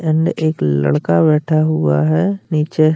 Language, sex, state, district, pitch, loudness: Hindi, female, Bihar, Darbhanga, 155 Hz, -15 LUFS